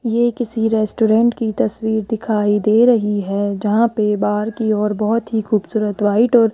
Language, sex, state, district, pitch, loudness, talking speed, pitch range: Hindi, female, Rajasthan, Jaipur, 220 Hz, -17 LUFS, 185 wpm, 210-230 Hz